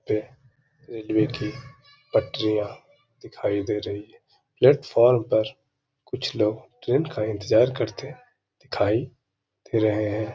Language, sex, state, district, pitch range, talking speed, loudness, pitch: Hindi, male, Uttar Pradesh, Hamirpur, 105-135 Hz, 115 wpm, -24 LUFS, 110 Hz